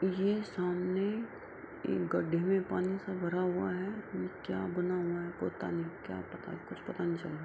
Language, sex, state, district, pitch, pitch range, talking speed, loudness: Hindi, female, Bihar, Kishanganj, 180 Hz, 170-190 Hz, 200 wpm, -35 LUFS